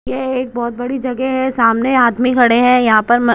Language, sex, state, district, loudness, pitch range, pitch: Hindi, female, Punjab, Kapurthala, -14 LUFS, 235-260 Hz, 245 Hz